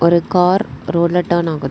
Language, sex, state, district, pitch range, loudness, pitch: Tamil, female, Tamil Nadu, Kanyakumari, 170-180 Hz, -16 LUFS, 170 Hz